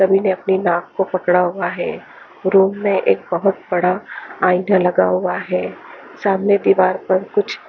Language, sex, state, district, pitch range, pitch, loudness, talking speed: Hindi, female, Haryana, Charkhi Dadri, 180-195 Hz, 190 Hz, -17 LUFS, 170 wpm